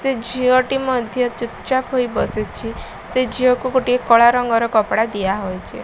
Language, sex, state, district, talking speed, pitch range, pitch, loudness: Odia, female, Odisha, Malkangiri, 125 wpm, 230-255 Hz, 250 Hz, -18 LUFS